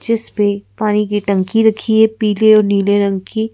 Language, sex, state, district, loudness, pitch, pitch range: Hindi, female, Madhya Pradesh, Bhopal, -14 LUFS, 210 Hz, 205-220 Hz